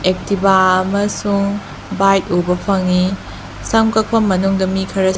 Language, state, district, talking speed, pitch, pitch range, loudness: Manipuri, Manipur, Imphal West, 130 wpm, 195 Hz, 185-200 Hz, -16 LUFS